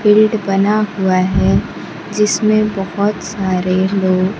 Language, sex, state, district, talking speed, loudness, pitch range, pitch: Hindi, female, Bihar, Kaimur, 110 wpm, -15 LUFS, 185-210 Hz, 195 Hz